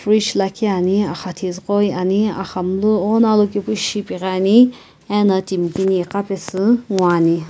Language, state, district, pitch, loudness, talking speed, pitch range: Sumi, Nagaland, Kohima, 195 Hz, -17 LUFS, 130 wpm, 185-210 Hz